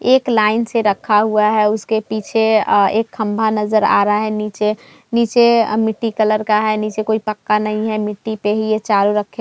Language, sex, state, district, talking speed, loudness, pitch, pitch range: Hindi, female, Bihar, Jamui, 200 wpm, -16 LUFS, 215 Hz, 210-220 Hz